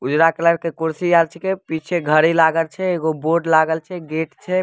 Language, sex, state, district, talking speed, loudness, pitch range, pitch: Maithili, male, Bihar, Samastipur, 205 wpm, -18 LUFS, 160-170 Hz, 165 Hz